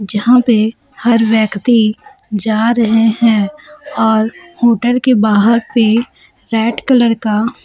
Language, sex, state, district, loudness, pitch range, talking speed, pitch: Hindi, female, Chhattisgarh, Raipur, -13 LUFS, 220-240 Hz, 115 wpm, 230 Hz